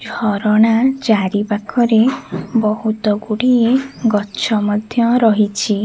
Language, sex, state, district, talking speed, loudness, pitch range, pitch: Odia, female, Odisha, Khordha, 70 wpm, -16 LUFS, 210-235 Hz, 220 Hz